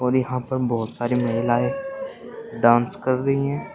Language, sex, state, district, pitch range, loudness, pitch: Hindi, male, Uttar Pradesh, Shamli, 120-140 Hz, -22 LUFS, 125 Hz